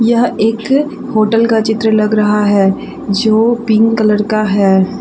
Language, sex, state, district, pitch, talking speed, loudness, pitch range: Hindi, female, Jharkhand, Deoghar, 220 Hz, 155 wpm, -12 LUFS, 210-225 Hz